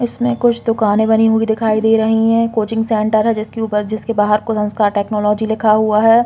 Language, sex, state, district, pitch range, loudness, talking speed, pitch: Hindi, female, Uttar Pradesh, Hamirpur, 215-225 Hz, -15 LUFS, 210 wpm, 220 Hz